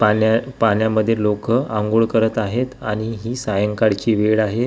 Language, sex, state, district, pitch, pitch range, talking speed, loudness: Marathi, male, Maharashtra, Gondia, 110 Hz, 105-115 Hz, 155 wpm, -19 LUFS